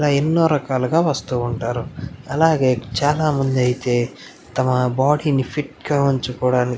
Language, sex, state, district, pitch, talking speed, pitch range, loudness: Telugu, male, Andhra Pradesh, Anantapur, 130 Hz, 115 wpm, 125-145 Hz, -19 LUFS